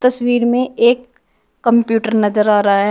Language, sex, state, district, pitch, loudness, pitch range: Hindi, female, Uttar Pradesh, Shamli, 235 Hz, -15 LUFS, 210-245 Hz